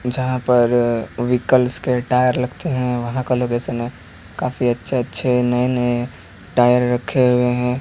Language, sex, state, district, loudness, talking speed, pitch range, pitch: Hindi, male, Haryana, Rohtak, -18 LUFS, 155 wpm, 120-125 Hz, 125 Hz